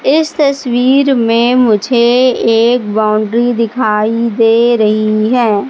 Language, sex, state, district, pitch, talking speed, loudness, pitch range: Hindi, female, Madhya Pradesh, Katni, 235 Hz, 105 wpm, -11 LUFS, 215-250 Hz